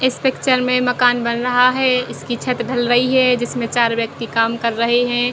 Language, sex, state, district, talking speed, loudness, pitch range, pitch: Hindi, female, Bihar, Kishanganj, 215 wpm, -17 LUFS, 235-250 Hz, 245 Hz